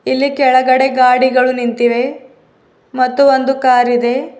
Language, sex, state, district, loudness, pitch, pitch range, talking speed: Kannada, female, Karnataka, Bidar, -12 LUFS, 255 Hz, 250-265 Hz, 110 wpm